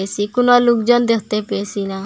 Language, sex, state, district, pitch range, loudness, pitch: Bengali, female, Assam, Hailakandi, 200-240 Hz, -16 LUFS, 215 Hz